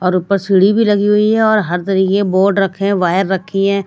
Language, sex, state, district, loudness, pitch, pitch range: Hindi, female, Bihar, Katihar, -13 LUFS, 195 Hz, 190-205 Hz